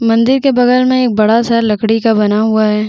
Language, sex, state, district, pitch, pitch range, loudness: Hindi, female, Chhattisgarh, Bastar, 225 Hz, 215-245 Hz, -11 LUFS